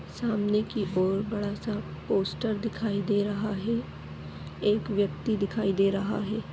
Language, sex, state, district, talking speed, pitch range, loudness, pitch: Hindi, female, Chhattisgarh, Kabirdham, 155 wpm, 195-215 Hz, -29 LUFS, 205 Hz